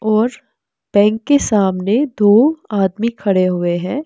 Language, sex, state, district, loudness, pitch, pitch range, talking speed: Hindi, female, Bihar, West Champaran, -15 LUFS, 215 Hz, 195-240 Hz, 135 wpm